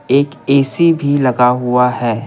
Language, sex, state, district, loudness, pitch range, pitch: Hindi, male, Bihar, Patna, -13 LUFS, 125-140 Hz, 130 Hz